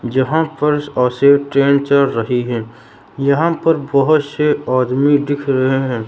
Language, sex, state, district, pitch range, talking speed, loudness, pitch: Hindi, male, Madhya Pradesh, Katni, 130-145 Hz, 130 wpm, -15 LUFS, 140 Hz